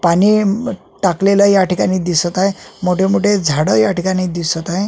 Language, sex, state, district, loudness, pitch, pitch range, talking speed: Marathi, male, Maharashtra, Solapur, -15 LUFS, 185 Hz, 175-200 Hz, 170 wpm